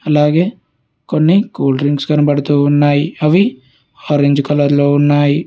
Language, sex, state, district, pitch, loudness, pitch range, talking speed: Telugu, male, Telangana, Hyderabad, 145 Hz, -13 LUFS, 145-155 Hz, 110 wpm